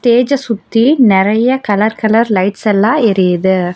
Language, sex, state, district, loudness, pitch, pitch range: Tamil, female, Tamil Nadu, Nilgiris, -12 LUFS, 215 Hz, 195-235 Hz